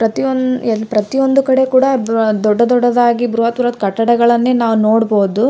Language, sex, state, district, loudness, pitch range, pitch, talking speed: Kannada, female, Karnataka, Raichur, -13 LUFS, 225-255 Hz, 235 Hz, 110 wpm